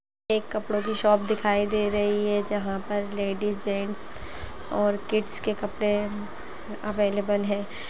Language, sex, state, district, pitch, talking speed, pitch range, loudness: Hindi, male, Chhattisgarh, Bastar, 205 Hz, 135 wpm, 205-210 Hz, -26 LUFS